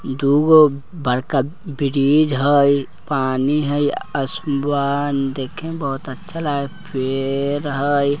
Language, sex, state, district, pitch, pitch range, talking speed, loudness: Hindi, male, Bihar, Vaishali, 140 Hz, 135-145 Hz, 110 wpm, -19 LUFS